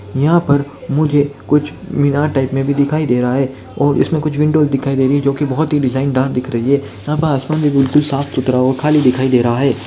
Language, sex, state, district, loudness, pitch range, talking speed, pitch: Hindi, male, Jharkhand, Jamtara, -15 LUFS, 130-150 Hz, 220 wpm, 140 Hz